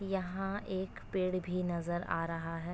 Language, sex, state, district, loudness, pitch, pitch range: Hindi, female, Uttar Pradesh, Etah, -37 LUFS, 180 Hz, 175-190 Hz